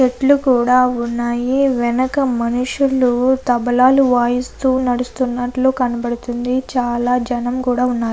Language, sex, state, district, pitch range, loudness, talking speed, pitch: Telugu, female, Andhra Pradesh, Anantapur, 245-260 Hz, -16 LUFS, 95 wpm, 250 Hz